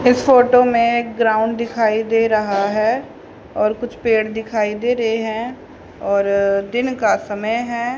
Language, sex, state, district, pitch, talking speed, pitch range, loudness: Hindi, female, Haryana, Charkhi Dadri, 225 Hz, 160 wpm, 215-240 Hz, -17 LUFS